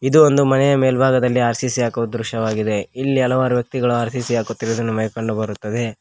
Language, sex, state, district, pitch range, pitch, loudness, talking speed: Kannada, male, Karnataka, Koppal, 115-130 Hz, 120 Hz, -18 LUFS, 150 wpm